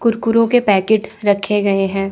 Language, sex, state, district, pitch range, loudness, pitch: Hindi, female, Chandigarh, Chandigarh, 195-230 Hz, -15 LUFS, 210 Hz